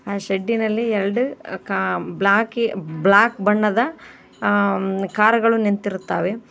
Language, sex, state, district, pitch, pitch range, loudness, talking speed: Kannada, female, Karnataka, Koppal, 210 Hz, 195-230 Hz, -19 LUFS, 90 wpm